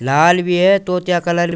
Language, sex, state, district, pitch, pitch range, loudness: Garhwali, male, Uttarakhand, Tehri Garhwal, 175 Hz, 170-180 Hz, -15 LUFS